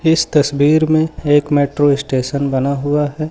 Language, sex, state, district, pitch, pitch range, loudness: Hindi, male, Uttar Pradesh, Lucknow, 145 Hz, 140-155 Hz, -15 LUFS